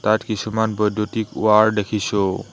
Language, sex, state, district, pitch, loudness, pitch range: Assamese, male, Assam, Hailakandi, 105 Hz, -19 LUFS, 105-110 Hz